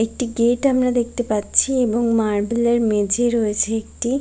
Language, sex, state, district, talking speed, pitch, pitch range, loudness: Bengali, female, West Bengal, Kolkata, 140 wpm, 235 Hz, 225-245 Hz, -19 LUFS